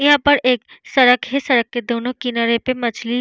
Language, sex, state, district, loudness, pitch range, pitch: Hindi, female, Bihar, Vaishali, -17 LUFS, 235-260 Hz, 245 Hz